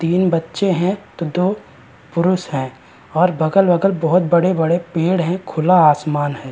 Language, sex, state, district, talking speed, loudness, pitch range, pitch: Hindi, male, Uttarakhand, Tehri Garhwal, 145 wpm, -17 LUFS, 155-185 Hz, 170 Hz